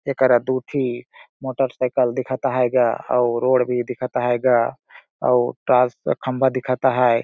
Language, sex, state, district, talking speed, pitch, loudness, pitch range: Surgujia, male, Chhattisgarh, Sarguja, 155 wpm, 125 Hz, -20 LUFS, 125-130 Hz